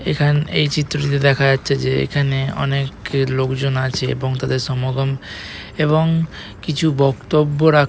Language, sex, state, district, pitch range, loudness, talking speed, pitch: Bengali, male, West Bengal, Purulia, 130-150 Hz, -18 LUFS, 130 wpm, 140 Hz